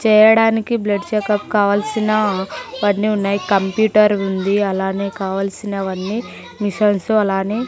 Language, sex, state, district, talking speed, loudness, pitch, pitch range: Telugu, female, Andhra Pradesh, Sri Satya Sai, 95 wpm, -17 LUFS, 205 Hz, 195-215 Hz